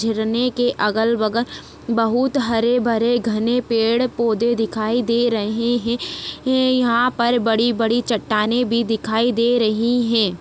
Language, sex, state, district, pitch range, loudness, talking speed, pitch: Hindi, female, Chhattisgarh, Jashpur, 225-245 Hz, -19 LUFS, 115 wpm, 235 Hz